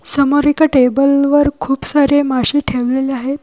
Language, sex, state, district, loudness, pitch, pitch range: Marathi, female, Maharashtra, Washim, -13 LUFS, 280 Hz, 265-290 Hz